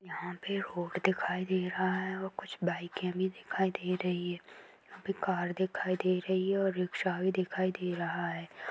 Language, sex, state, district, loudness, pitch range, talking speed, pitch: Hindi, male, Chhattisgarh, Bastar, -34 LUFS, 180-190 Hz, 195 wpm, 185 Hz